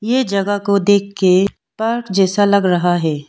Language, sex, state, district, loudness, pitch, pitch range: Hindi, female, Arunachal Pradesh, Longding, -15 LUFS, 200 Hz, 185-205 Hz